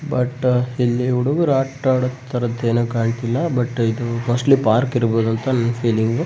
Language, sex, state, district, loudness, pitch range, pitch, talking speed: Kannada, male, Karnataka, Bellary, -19 LUFS, 115-130 Hz, 125 Hz, 145 wpm